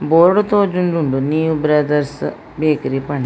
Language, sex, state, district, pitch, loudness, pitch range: Tulu, female, Karnataka, Dakshina Kannada, 155 Hz, -16 LUFS, 145-170 Hz